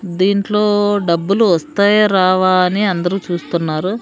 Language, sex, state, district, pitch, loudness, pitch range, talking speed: Telugu, female, Andhra Pradesh, Sri Satya Sai, 190 Hz, -15 LUFS, 175-205 Hz, 105 wpm